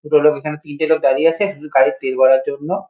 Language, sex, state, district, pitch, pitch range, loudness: Bengali, male, West Bengal, Kolkata, 150 Hz, 135-160 Hz, -16 LUFS